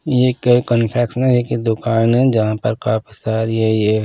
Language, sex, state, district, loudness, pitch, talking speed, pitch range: Hindi, male, Punjab, Pathankot, -16 LUFS, 115 Hz, 175 wpm, 110-125 Hz